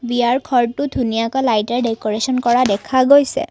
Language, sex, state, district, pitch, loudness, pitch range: Assamese, female, Assam, Kamrup Metropolitan, 245 Hz, -16 LUFS, 230-260 Hz